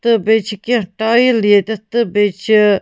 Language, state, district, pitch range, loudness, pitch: Kashmiri, Punjab, Kapurthala, 205-230 Hz, -14 LUFS, 220 Hz